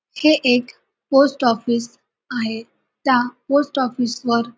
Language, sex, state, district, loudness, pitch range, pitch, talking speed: Marathi, female, Maharashtra, Sindhudurg, -19 LUFS, 235-275 Hz, 245 Hz, 130 wpm